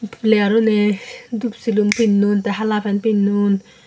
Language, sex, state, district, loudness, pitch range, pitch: Chakma, female, Tripura, Unakoti, -17 LUFS, 205-220 Hz, 210 Hz